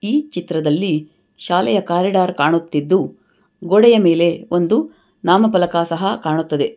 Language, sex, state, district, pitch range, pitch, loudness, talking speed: Kannada, female, Karnataka, Bangalore, 165-195 Hz, 175 Hz, -16 LUFS, 105 wpm